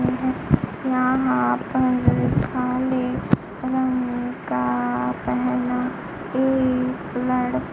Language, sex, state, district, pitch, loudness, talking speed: Hindi, female, Bihar, Kaimur, 250 Hz, -22 LUFS, 60 wpm